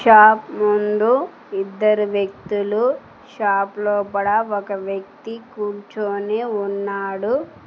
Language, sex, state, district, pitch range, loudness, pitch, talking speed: Telugu, female, Telangana, Mahabubabad, 200-220 Hz, -20 LUFS, 210 Hz, 80 wpm